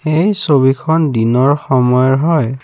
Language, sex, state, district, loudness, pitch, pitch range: Assamese, male, Assam, Kamrup Metropolitan, -13 LUFS, 135 Hz, 130-160 Hz